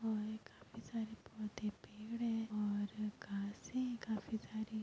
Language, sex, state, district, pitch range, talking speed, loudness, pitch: Hindi, female, Bihar, Muzaffarpur, 210-225 Hz, 135 wpm, -43 LUFS, 220 Hz